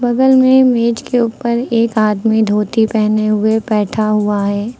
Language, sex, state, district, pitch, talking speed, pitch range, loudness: Hindi, female, Uttar Pradesh, Lucknow, 220 Hz, 160 wpm, 215-240 Hz, -14 LUFS